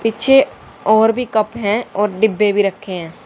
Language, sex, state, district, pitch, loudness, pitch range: Hindi, female, Haryana, Jhajjar, 215 Hz, -16 LUFS, 205-225 Hz